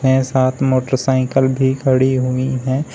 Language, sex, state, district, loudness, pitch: Hindi, male, Uttar Pradesh, Shamli, -16 LUFS, 130 Hz